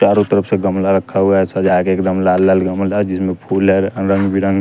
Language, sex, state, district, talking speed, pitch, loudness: Hindi, male, Bihar, West Champaran, 235 wpm, 95 Hz, -15 LUFS